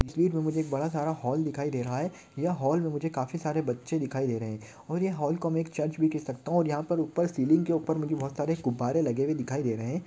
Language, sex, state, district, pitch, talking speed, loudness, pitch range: Hindi, male, Maharashtra, Solapur, 155 Hz, 250 wpm, -29 LUFS, 135-165 Hz